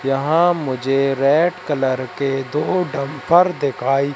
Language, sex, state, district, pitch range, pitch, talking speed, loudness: Hindi, male, Madhya Pradesh, Katni, 135-165 Hz, 140 Hz, 115 wpm, -18 LUFS